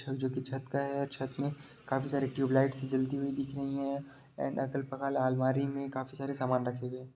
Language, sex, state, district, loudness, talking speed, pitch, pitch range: Hindi, male, Bihar, Sitamarhi, -34 LUFS, 200 wpm, 135 Hz, 130-140 Hz